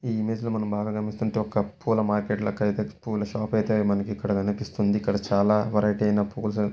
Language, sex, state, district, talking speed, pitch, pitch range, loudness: Telugu, male, Telangana, Karimnagar, 185 wpm, 105 Hz, 105-110 Hz, -26 LUFS